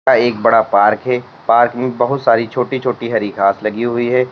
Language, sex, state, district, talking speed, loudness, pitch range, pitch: Hindi, male, Uttar Pradesh, Lalitpur, 220 wpm, -15 LUFS, 110-125 Hz, 120 Hz